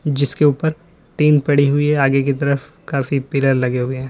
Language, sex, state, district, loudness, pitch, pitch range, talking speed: Hindi, male, Uttar Pradesh, Lalitpur, -17 LUFS, 140 Hz, 135-150 Hz, 205 wpm